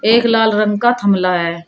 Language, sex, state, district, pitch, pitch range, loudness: Hindi, female, Uttar Pradesh, Shamli, 215 Hz, 185-230 Hz, -14 LUFS